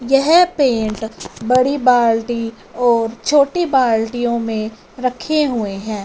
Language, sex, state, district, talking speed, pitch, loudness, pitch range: Hindi, female, Punjab, Fazilka, 110 wpm, 240 Hz, -16 LUFS, 225-270 Hz